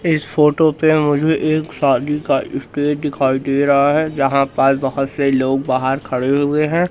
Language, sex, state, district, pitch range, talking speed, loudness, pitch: Hindi, male, Madhya Pradesh, Katni, 135-150 Hz, 180 wpm, -16 LUFS, 145 Hz